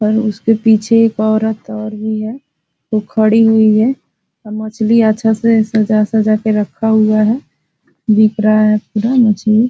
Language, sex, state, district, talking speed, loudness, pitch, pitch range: Hindi, female, Bihar, Jahanabad, 175 wpm, -13 LUFS, 215 Hz, 215-225 Hz